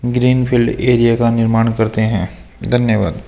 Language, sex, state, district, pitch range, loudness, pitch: Hindi, male, Rajasthan, Jaipur, 110-120 Hz, -14 LUFS, 115 Hz